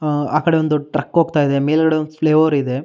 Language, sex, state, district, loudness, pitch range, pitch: Kannada, male, Karnataka, Shimoga, -17 LUFS, 145-160 Hz, 150 Hz